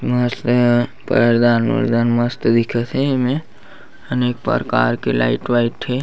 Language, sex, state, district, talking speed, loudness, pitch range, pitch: Chhattisgarhi, male, Chhattisgarh, Bastar, 140 wpm, -17 LUFS, 115-125 Hz, 120 Hz